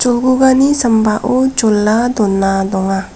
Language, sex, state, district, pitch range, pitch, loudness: Garo, female, Meghalaya, South Garo Hills, 200-255 Hz, 225 Hz, -13 LUFS